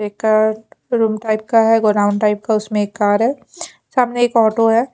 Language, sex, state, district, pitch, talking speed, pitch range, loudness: Hindi, female, Haryana, Jhajjar, 220 Hz, 195 wpm, 210-230 Hz, -16 LUFS